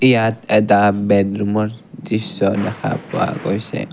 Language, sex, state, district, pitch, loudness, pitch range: Assamese, male, Assam, Kamrup Metropolitan, 105 Hz, -18 LUFS, 100-110 Hz